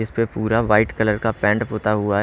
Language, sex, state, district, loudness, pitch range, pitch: Hindi, male, Haryana, Rohtak, -20 LUFS, 105-110 Hz, 110 Hz